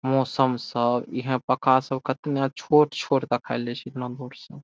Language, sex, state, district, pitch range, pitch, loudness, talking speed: Maithili, male, Bihar, Saharsa, 125-135 Hz, 130 Hz, -24 LUFS, 170 wpm